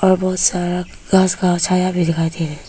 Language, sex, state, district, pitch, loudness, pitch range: Hindi, female, Arunachal Pradesh, Papum Pare, 180 Hz, -17 LUFS, 170-185 Hz